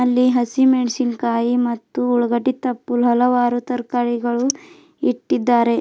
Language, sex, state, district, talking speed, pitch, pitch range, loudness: Kannada, female, Karnataka, Bidar, 80 wpm, 245 Hz, 240-255 Hz, -19 LUFS